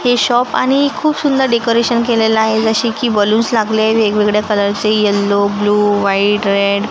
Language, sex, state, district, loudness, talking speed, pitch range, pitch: Marathi, female, Maharashtra, Gondia, -13 LUFS, 165 wpm, 205-235 Hz, 220 Hz